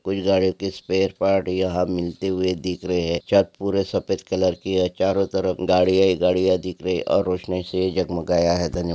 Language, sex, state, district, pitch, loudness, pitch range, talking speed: Hindi, male, Maharashtra, Aurangabad, 95 Hz, -22 LUFS, 90-95 Hz, 215 wpm